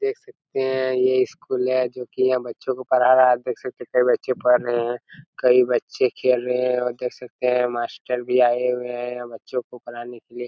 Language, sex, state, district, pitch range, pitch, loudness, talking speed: Hindi, male, Chhattisgarh, Raigarh, 125-130 Hz, 125 Hz, -22 LUFS, 235 wpm